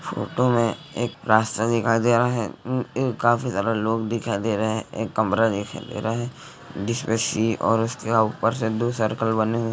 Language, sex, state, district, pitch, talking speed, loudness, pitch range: Hindi, male, Chhattisgarh, Bilaspur, 115 Hz, 210 wpm, -23 LUFS, 110-120 Hz